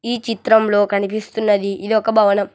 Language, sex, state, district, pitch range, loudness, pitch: Telugu, male, Telangana, Hyderabad, 200-220 Hz, -17 LUFS, 215 Hz